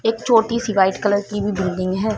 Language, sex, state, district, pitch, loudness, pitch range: Hindi, female, Punjab, Fazilka, 205 Hz, -19 LUFS, 190-225 Hz